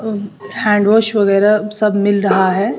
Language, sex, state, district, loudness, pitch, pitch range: Hindi, female, Bihar, West Champaran, -14 LUFS, 210 Hz, 200-215 Hz